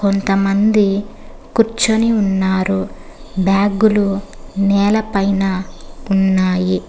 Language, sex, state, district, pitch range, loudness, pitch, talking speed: Telugu, female, Telangana, Hyderabad, 195-210 Hz, -16 LUFS, 195 Hz, 50 wpm